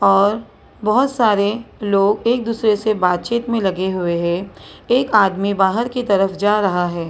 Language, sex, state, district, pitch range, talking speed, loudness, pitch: Hindi, female, Maharashtra, Mumbai Suburban, 190-230 Hz, 170 wpm, -17 LUFS, 205 Hz